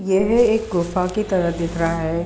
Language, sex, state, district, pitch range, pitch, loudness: Hindi, female, Uttar Pradesh, Jalaun, 170-200 Hz, 180 Hz, -20 LUFS